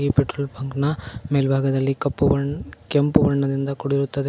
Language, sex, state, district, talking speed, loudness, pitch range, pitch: Kannada, male, Karnataka, Koppal, 125 wpm, -22 LUFS, 135-140 Hz, 140 Hz